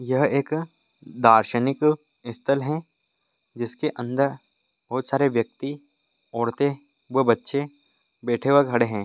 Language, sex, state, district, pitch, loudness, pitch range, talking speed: Hindi, male, Chhattisgarh, Raigarh, 135 Hz, -23 LUFS, 120-145 Hz, 115 wpm